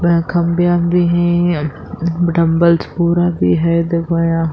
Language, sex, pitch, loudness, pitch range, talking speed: Urdu, female, 170 Hz, -15 LUFS, 165-175 Hz, 130 wpm